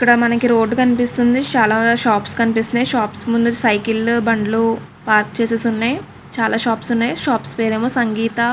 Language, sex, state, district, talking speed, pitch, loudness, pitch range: Telugu, female, Andhra Pradesh, Krishna, 160 wpm, 230 Hz, -17 LUFS, 225-240 Hz